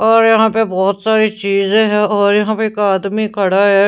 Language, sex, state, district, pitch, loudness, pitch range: Hindi, female, Punjab, Pathankot, 210 Hz, -13 LUFS, 200-220 Hz